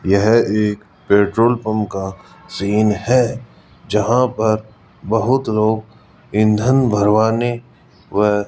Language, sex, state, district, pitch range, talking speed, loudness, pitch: Hindi, male, Rajasthan, Jaipur, 105-115 Hz, 105 wpm, -17 LUFS, 110 Hz